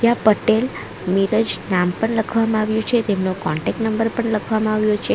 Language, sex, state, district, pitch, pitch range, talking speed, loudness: Gujarati, female, Gujarat, Valsad, 220 Hz, 205-225 Hz, 165 wpm, -19 LUFS